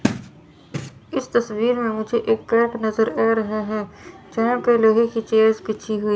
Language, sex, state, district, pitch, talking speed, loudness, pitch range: Hindi, female, Chandigarh, Chandigarh, 225 Hz, 155 wpm, -20 LUFS, 220-230 Hz